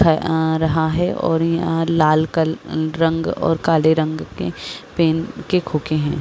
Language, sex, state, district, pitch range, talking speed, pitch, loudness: Hindi, female, Chhattisgarh, Rajnandgaon, 155-165 Hz, 185 wpm, 160 Hz, -19 LUFS